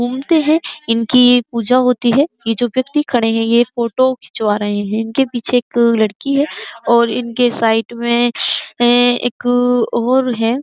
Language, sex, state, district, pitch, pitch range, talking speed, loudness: Hindi, female, Uttar Pradesh, Jyotiba Phule Nagar, 240 Hz, 230-255 Hz, 150 wpm, -15 LUFS